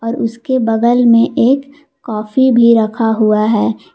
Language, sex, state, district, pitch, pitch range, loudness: Hindi, female, Jharkhand, Palamu, 230 Hz, 220-255 Hz, -12 LUFS